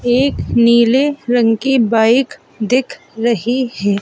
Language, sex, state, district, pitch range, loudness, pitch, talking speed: Hindi, male, Madhya Pradesh, Bhopal, 225-260 Hz, -14 LUFS, 240 Hz, 120 wpm